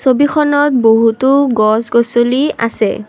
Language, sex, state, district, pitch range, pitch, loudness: Assamese, female, Assam, Kamrup Metropolitan, 230-280 Hz, 240 Hz, -12 LUFS